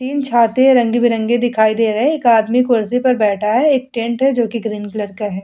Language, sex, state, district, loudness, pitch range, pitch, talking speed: Hindi, female, Bihar, Vaishali, -15 LUFS, 220-255 Hz, 235 Hz, 265 wpm